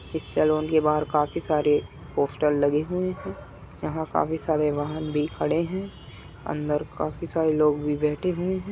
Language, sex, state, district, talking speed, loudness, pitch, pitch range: Hindi, male, Uttar Pradesh, Muzaffarnagar, 170 wpm, -25 LUFS, 150 Hz, 150-160 Hz